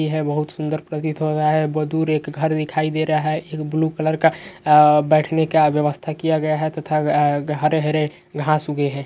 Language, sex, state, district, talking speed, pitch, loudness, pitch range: Hindi, male, Uttar Pradesh, Etah, 210 wpm, 155 Hz, -19 LUFS, 150-155 Hz